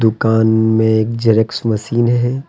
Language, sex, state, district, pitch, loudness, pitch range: Hindi, male, Jharkhand, Deoghar, 110 Hz, -14 LUFS, 110-120 Hz